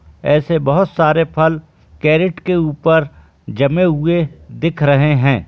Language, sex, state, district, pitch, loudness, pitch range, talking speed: Hindi, male, Chhattisgarh, Bilaspur, 155 Hz, -15 LUFS, 145-165 Hz, 130 wpm